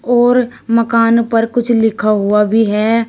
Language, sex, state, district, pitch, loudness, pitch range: Hindi, female, Uttar Pradesh, Shamli, 230 Hz, -13 LUFS, 220-235 Hz